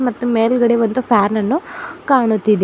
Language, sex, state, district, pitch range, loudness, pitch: Kannada, female, Karnataka, Bidar, 220-265 Hz, -16 LUFS, 240 Hz